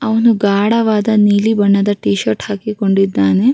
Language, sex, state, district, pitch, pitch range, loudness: Kannada, female, Karnataka, Raichur, 205 Hz, 195-220 Hz, -14 LUFS